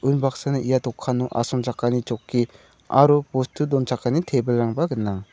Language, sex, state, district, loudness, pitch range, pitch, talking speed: Garo, male, Meghalaya, South Garo Hills, -22 LUFS, 120-135 Hz, 125 Hz, 115 wpm